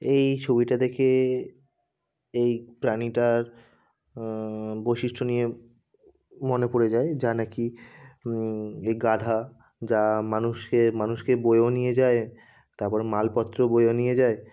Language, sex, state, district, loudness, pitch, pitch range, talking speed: Bengali, male, West Bengal, Kolkata, -25 LUFS, 120 Hz, 115-125 Hz, 125 wpm